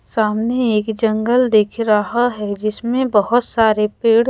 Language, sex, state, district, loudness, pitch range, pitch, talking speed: Hindi, female, Odisha, Khordha, -17 LUFS, 215-240 Hz, 220 Hz, 140 wpm